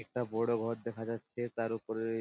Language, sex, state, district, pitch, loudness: Bengali, male, West Bengal, Purulia, 115 Hz, -36 LUFS